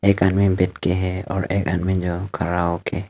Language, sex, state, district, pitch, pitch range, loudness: Hindi, male, Arunachal Pradesh, Longding, 95 Hz, 90-95 Hz, -21 LUFS